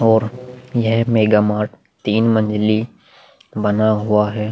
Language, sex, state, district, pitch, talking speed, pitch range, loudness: Hindi, male, Bihar, Vaishali, 110 Hz, 120 wpm, 105-115 Hz, -17 LUFS